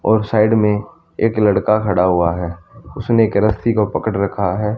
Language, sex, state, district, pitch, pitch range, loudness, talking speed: Hindi, male, Haryana, Charkhi Dadri, 105 Hz, 100-110 Hz, -16 LUFS, 190 wpm